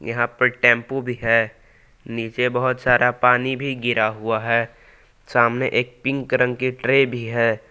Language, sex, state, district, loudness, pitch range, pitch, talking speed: Hindi, male, Jharkhand, Palamu, -20 LUFS, 115-125 Hz, 120 Hz, 165 wpm